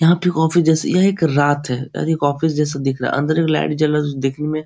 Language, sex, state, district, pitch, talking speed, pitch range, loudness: Hindi, male, Bihar, Supaul, 155 Hz, 285 wpm, 145-160 Hz, -18 LUFS